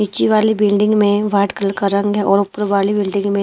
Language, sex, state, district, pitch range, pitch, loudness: Hindi, female, Himachal Pradesh, Shimla, 200-210 Hz, 200 Hz, -16 LUFS